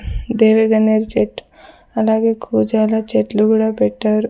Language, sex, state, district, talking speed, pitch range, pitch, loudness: Telugu, female, Andhra Pradesh, Sri Satya Sai, 110 wpm, 215-220 Hz, 220 Hz, -16 LUFS